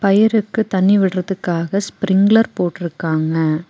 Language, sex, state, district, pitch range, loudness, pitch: Tamil, female, Tamil Nadu, Nilgiris, 170-200 Hz, -17 LUFS, 190 Hz